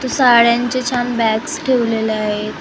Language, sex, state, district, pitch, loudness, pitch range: Marathi, female, Maharashtra, Gondia, 235 Hz, -15 LUFS, 220-255 Hz